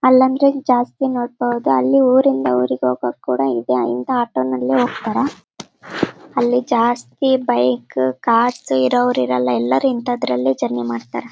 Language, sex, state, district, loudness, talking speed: Kannada, female, Karnataka, Bellary, -17 LUFS, 110 wpm